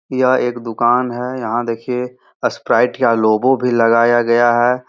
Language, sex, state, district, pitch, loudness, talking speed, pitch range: Hindi, male, Bihar, Araria, 120 Hz, -16 LUFS, 160 wpm, 115-125 Hz